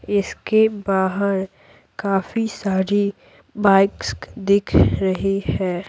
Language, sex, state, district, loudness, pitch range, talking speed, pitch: Hindi, female, Bihar, Patna, -20 LUFS, 190-205 Hz, 80 wpm, 195 Hz